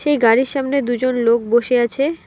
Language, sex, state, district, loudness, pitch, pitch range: Bengali, female, West Bengal, Alipurduar, -17 LUFS, 250 Hz, 235-275 Hz